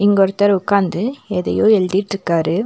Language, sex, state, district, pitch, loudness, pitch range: Tamil, female, Tamil Nadu, Nilgiris, 200 Hz, -16 LUFS, 185-205 Hz